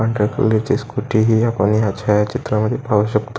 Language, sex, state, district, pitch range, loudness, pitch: Marathi, male, Maharashtra, Pune, 105-115 Hz, -17 LUFS, 110 Hz